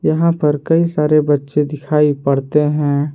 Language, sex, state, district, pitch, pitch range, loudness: Hindi, male, Jharkhand, Palamu, 150 Hz, 145-155 Hz, -15 LUFS